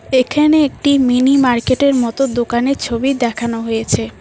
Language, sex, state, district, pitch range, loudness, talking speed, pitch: Bengali, female, West Bengal, Cooch Behar, 235-275 Hz, -15 LUFS, 130 wpm, 255 Hz